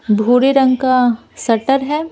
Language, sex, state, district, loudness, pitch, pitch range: Hindi, female, Bihar, Patna, -14 LUFS, 255 Hz, 240-270 Hz